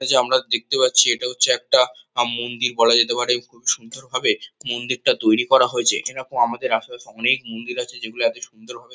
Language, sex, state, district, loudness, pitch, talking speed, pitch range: Bengali, male, West Bengal, Kolkata, -20 LUFS, 125 Hz, 195 wpm, 120-130 Hz